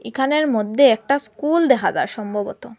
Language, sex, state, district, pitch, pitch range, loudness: Bengali, female, Assam, Hailakandi, 265 Hz, 220-280 Hz, -18 LUFS